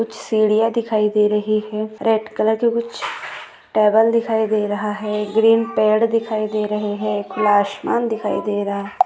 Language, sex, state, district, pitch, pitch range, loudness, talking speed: Hindi, female, Maharashtra, Aurangabad, 215 Hz, 210-225 Hz, -19 LUFS, 180 wpm